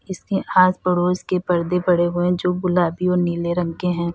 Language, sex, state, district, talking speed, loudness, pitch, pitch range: Hindi, female, Uttar Pradesh, Lalitpur, 215 wpm, -20 LUFS, 180 Hz, 175-180 Hz